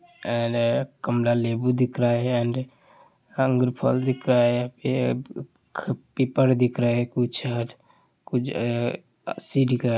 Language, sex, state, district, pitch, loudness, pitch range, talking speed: Hindi, male, Uttar Pradesh, Hamirpur, 125 Hz, -24 LUFS, 120-130 Hz, 130 wpm